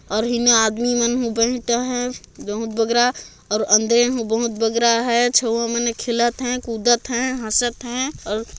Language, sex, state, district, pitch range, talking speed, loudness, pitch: Chhattisgarhi, female, Chhattisgarh, Jashpur, 225-245 Hz, 165 wpm, -19 LUFS, 235 Hz